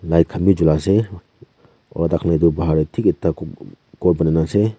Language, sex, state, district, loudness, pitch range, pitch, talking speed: Nagamese, male, Nagaland, Kohima, -18 LUFS, 80-100 Hz, 85 Hz, 225 wpm